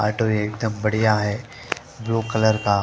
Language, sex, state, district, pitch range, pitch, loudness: Hindi, female, Punjab, Fazilka, 105-115 Hz, 110 Hz, -22 LUFS